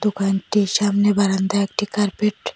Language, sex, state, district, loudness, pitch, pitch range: Bengali, female, Assam, Hailakandi, -19 LUFS, 205 Hz, 195-210 Hz